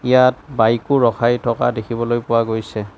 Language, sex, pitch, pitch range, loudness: Assamese, male, 115 Hz, 110-125 Hz, -17 LUFS